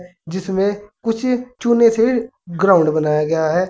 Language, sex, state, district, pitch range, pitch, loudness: Hindi, male, Uttar Pradesh, Saharanpur, 170-230 Hz, 195 Hz, -17 LUFS